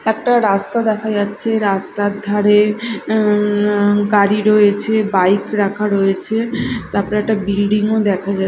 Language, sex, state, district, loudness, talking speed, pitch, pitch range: Bengali, female, Odisha, Khordha, -16 LUFS, 120 wpm, 210 Hz, 200-215 Hz